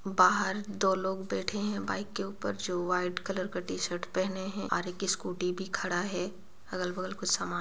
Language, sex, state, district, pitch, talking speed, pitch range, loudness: Hindi, female, Bihar, Bhagalpur, 185 Hz, 195 wpm, 180-195 Hz, -32 LUFS